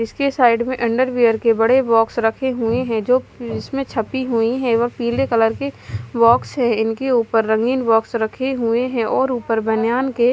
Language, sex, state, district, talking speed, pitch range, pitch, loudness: Hindi, female, Haryana, Charkhi Dadri, 190 wpm, 225-255 Hz, 235 Hz, -18 LUFS